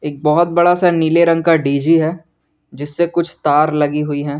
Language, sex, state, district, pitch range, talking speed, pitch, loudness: Hindi, male, Jharkhand, Garhwa, 145-170 Hz, 205 wpm, 160 Hz, -15 LUFS